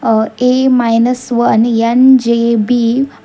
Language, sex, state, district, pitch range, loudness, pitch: Kannada, female, Karnataka, Bidar, 230-250 Hz, -11 LUFS, 235 Hz